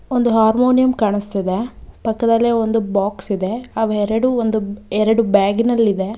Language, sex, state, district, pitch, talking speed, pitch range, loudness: Kannada, female, Karnataka, Bangalore, 220 Hz, 105 wpm, 205-235 Hz, -17 LUFS